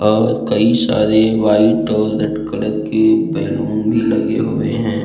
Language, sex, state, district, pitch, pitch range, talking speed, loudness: Hindi, male, Uttar Pradesh, Jalaun, 110 Hz, 105-110 Hz, 155 wpm, -15 LUFS